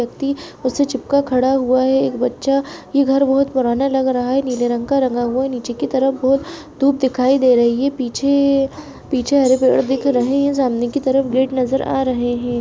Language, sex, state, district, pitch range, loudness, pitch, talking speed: Hindi, female, Chhattisgarh, Bastar, 250-275 Hz, -17 LUFS, 265 Hz, 205 wpm